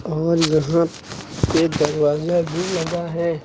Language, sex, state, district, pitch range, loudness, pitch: Hindi, male, Uttar Pradesh, Lucknow, 155-170 Hz, -20 LUFS, 165 Hz